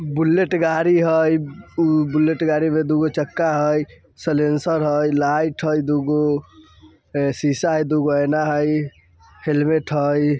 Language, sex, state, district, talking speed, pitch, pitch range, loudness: Bajjika, male, Bihar, Vaishali, 125 wpm, 150 Hz, 145-160 Hz, -19 LUFS